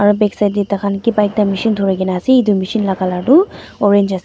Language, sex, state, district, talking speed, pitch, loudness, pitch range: Nagamese, female, Nagaland, Dimapur, 255 wpm, 205 Hz, -15 LUFS, 195-210 Hz